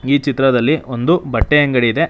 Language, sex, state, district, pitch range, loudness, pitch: Kannada, male, Karnataka, Bangalore, 125-150 Hz, -15 LUFS, 135 Hz